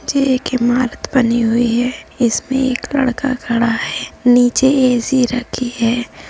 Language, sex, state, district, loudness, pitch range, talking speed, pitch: Hindi, female, Uttar Pradesh, Budaun, -16 LUFS, 240-260 Hz, 150 wpm, 245 Hz